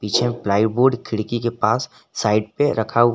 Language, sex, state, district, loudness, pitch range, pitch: Hindi, male, Jharkhand, Garhwa, -20 LUFS, 105-120 Hz, 115 Hz